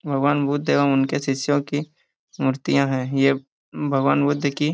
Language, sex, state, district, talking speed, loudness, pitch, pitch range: Hindi, male, Jharkhand, Jamtara, 165 wpm, -21 LUFS, 140 Hz, 135-145 Hz